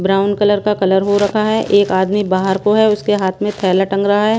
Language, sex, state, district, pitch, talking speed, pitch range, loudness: Hindi, female, Bihar, Kaimur, 205 Hz, 260 wpm, 190-210 Hz, -14 LUFS